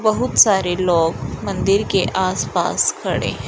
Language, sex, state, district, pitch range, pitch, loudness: Hindi, male, Punjab, Fazilka, 180-205 Hz, 190 Hz, -18 LUFS